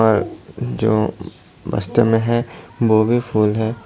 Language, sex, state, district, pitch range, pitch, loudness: Hindi, male, Tripura, Dhalai, 110-120 Hz, 110 Hz, -18 LUFS